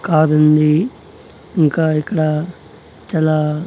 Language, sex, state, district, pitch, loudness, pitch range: Telugu, male, Andhra Pradesh, Annamaya, 155 Hz, -16 LUFS, 150-160 Hz